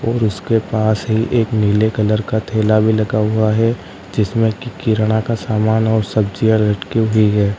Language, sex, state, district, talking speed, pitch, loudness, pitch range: Hindi, male, Uttar Pradesh, Lalitpur, 180 wpm, 110 Hz, -16 LUFS, 105-110 Hz